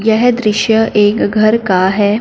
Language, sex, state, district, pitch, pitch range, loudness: Hindi, female, Punjab, Fazilka, 215 Hz, 205-220 Hz, -12 LUFS